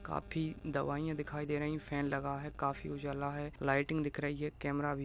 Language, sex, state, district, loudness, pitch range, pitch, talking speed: Hindi, male, Uttarakhand, Tehri Garhwal, -36 LUFS, 140-150 Hz, 145 Hz, 225 wpm